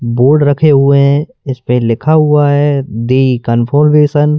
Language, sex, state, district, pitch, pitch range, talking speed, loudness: Hindi, male, Madhya Pradesh, Bhopal, 145 Hz, 125-150 Hz, 150 wpm, -10 LUFS